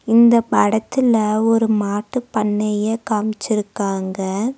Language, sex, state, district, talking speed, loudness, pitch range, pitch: Tamil, female, Tamil Nadu, Nilgiris, 80 wpm, -18 LUFS, 210-230 Hz, 215 Hz